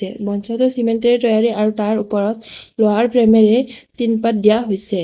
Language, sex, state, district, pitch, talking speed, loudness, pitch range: Assamese, female, Assam, Sonitpur, 225 Hz, 165 wpm, -16 LUFS, 210-235 Hz